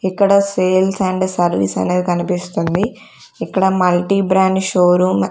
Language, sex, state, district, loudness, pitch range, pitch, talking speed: Telugu, female, Andhra Pradesh, Sri Satya Sai, -16 LUFS, 180-190 Hz, 185 Hz, 125 wpm